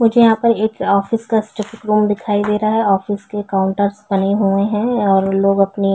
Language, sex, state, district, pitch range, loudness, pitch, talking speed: Hindi, female, Chhattisgarh, Bilaspur, 195-220 Hz, -16 LUFS, 205 Hz, 200 wpm